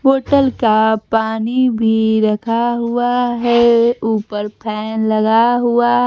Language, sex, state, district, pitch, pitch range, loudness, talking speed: Hindi, female, Bihar, Kaimur, 230 Hz, 220-240 Hz, -15 LUFS, 110 wpm